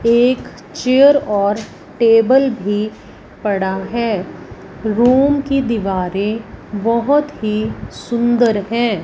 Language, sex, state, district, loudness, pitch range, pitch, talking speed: Hindi, female, Punjab, Fazilka, -16 LUFS, 210-250 Hz, 230 Hz, 95 wpm